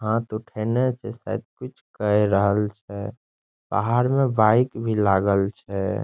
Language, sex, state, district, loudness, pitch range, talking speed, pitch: Maithili, male, Bihar, Saharsa, -23 LUFS, 100-115 Hz, 140 wpm, 110 Hz